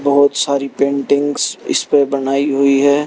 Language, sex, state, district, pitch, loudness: Hindi, male, Haryana, Rohtak, 140 Hz, -15 LUFS